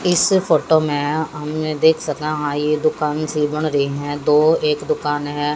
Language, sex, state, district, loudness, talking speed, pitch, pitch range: Hindi, female, Haryana, Jhajjar, -18 LUFS, 195 wpm, 150 Hz, 150-155 Hz